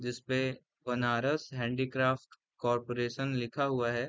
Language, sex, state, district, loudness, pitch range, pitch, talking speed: Hindi, male, Uttar Pradesh, Varanasi, -33 LUFS, 120-130 Hz, 125 Hz, 105 wpm